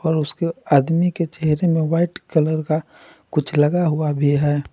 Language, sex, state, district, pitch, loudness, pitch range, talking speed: Hindi, male, Jharkhand, Palamu, 155 Hz, -19 LUFS, 150-165 Hz, 180 wpm